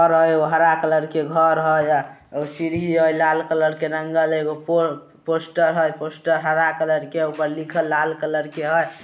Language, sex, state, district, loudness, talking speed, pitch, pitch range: Hindi, male, Bihar, Samastipur, -20 LUFS, 180 wpm, 160 Hz, 155-165 Hz